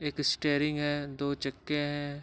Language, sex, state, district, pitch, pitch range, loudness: Hindi, male, Jharkhand, Sahebganj, 145 Hz, 140-145 Hz, -31 LUFS